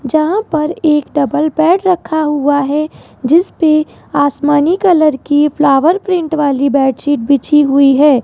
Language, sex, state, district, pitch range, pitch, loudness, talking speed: Hindi, female, Rajasthan, Jaipur, 285-315 Hz, 295 Hz, -12 LUFS, 145 wpm